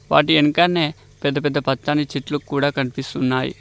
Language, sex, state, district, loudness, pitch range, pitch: Telugu, male, Telangana, Mahabubabad, -20 LUFS, 135-150 Hz, 145 Hz